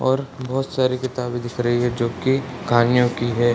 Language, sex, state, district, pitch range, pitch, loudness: Hindi, male, Bihar, Sitamarhi, 120-130 Hz, 125 Hz, -21 LUFS